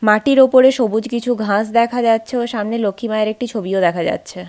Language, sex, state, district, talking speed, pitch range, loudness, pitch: Bengali, female, West Bengal, Paschim Medinipur, 215 wpm, 210-245 Hz, -16 LUFS, 225 Hz